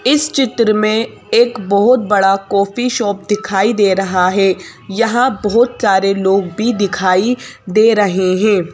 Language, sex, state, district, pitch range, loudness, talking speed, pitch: Hindi, female, Madhya Pradesh, Bhopal, 195-230 Hz, -14 LUFS, 145 wpm, 205 Hz